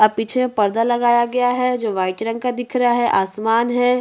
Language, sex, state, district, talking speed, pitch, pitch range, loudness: Hindi, female, Chhattisgarh, Bastar, 225 wpm, 240 Hz, 220-245 Hz, -18 LUFS